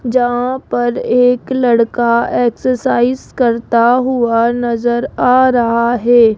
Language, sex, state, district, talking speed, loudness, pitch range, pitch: Hindi, female, Rajasthan, Jaipur, 105 wpm, -13 LUFS, 235-250 Hz, 240 Hz